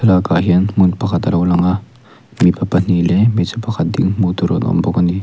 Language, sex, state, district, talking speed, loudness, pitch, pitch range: Mizo, male, Mizoram, Aizawl, 220 wpm, -15 LUFS, 90 Hz, 90-100 Hz